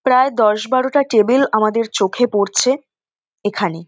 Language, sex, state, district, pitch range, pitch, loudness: Bengali, female, West Bengal, North 24 Parganas, 205-255 Hz, 230 Hz, -16 LUFS